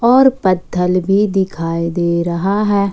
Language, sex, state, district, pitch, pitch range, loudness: Hindi, female, Jharkhand, Ranchi, 185 Hz, 175-205 Hz, -15 LUFS